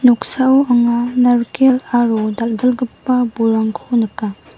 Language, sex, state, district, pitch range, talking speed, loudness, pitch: Garo, female, Meghalaya, West Garo Hills, 225-250 Hz, 90 wpm, -15 LUFS, 240 Hz